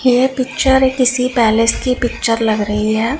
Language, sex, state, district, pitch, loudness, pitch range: Hindi, female, Punjab, Pathankot, 250 Hz, -15 LUFS, 225-260 Hz